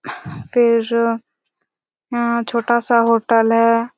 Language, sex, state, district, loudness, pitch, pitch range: Hindi, female, Chhattisgarh, Raigarh, -17 LUFS, 235 Hz, 230-235 Hz